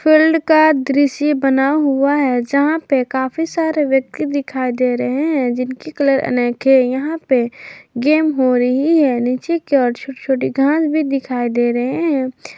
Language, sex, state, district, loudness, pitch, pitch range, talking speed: Hindi, female, Jharkhand, Garhwa, -16 LUFS, 275 Hz, 255-305 Hz, 170 wpm